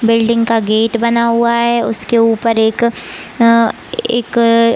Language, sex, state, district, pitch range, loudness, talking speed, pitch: Hindi, female, Chhattisgarh, Raigarh, 230-235 Hz, -13 LUFS, 140 wpm, 230 Hz